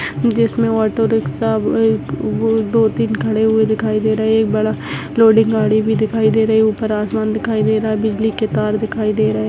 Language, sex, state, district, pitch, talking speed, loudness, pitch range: Hindi, female, Karnataka, Dakshina Kannada, 220 Hz, 200 wpm, -16 LUFS, 215-220 Hz